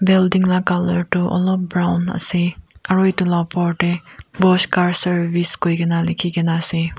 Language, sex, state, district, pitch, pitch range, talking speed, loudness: Nagamese, female, Nagaland, Kohima, 175 Hz, 170-180 Hz, 190 wpm, -18 LUFS